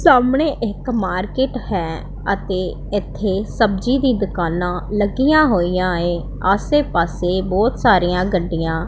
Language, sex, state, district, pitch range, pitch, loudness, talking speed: Punjabi, female, Punjab, Pathankot, 180-240 Hz, 190 Hz, -18 LUFS, 115 wpm